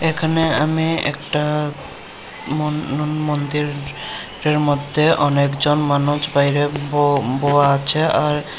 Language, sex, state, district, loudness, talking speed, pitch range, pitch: Bengali, male, Tripura, Unakoti, -18 LUFS, 75 wpm, 145-150 Hz, 145 Hz